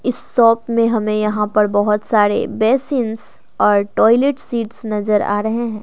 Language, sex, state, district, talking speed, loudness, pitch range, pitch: Hindi, female, Bihar, West Champaran, 165 wpm, -16 LUFS, 210-235 Hz, 220 Hz